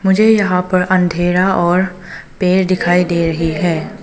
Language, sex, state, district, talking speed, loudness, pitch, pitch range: Hindi, female, Arunachal Pradesh, Papum Pare, 150 wpm, -14 LUFS, 180 Hz, 175-185 Hz